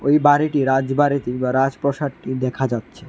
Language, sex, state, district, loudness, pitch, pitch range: Bengali, male, Tripura, West Tripura, -19 LUFS, 135 Hz, 130-145 Hz